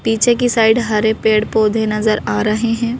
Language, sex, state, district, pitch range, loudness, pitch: Hindi, female, Madhya Pradesh, Bhopal, 215-230 Hz, -15 LUFS, 220 Hz